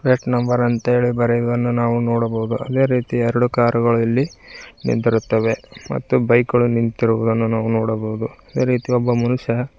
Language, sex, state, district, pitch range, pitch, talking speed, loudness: Kannada, male, Karnataka, Koppal, 115-125 Hz, 120 Hz, 155 wpm, -19 LUFS